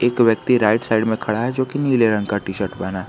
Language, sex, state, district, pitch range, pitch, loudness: Hindi, male, Jharkhand, Garhwa, 100-120 Hz, 110 Hz, -19 LUFS